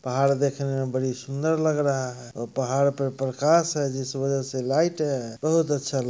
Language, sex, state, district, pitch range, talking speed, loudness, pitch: Hindi, male, Bihar, Muzaffarpur, 130-145 Hz, 195 wpm, -25 LUFS, 135 Hz